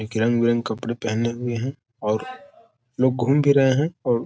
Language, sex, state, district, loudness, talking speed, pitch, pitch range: Hindi, male, Bihar, Gopalganj, -22 LUFS, 210 wpm, 120 Hz, 115-140 Hz